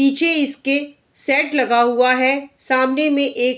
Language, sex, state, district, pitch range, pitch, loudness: Hindi, female, Bihar, Araria, 255-285 Hz, 275 Hz, -17 LUFS